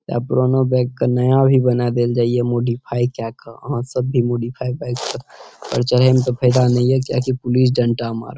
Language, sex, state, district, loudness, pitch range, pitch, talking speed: Maithili, male, Bihar, Saharsa, -18 LUFS, 120-130 Hz, 125 Hz, 200 wpm